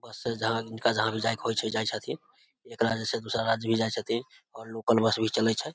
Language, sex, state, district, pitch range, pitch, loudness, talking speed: Maithili, male, Bihar, Samastipur, 110-115 Hz, 115 Hz, -28 LUFS, 270 wpm